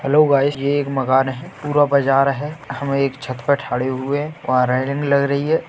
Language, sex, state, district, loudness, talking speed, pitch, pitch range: Hindi, male, Uttar Pradesh, Etah, -19 LUFS, 220 wpm, 140 Hz, 135-145 Hz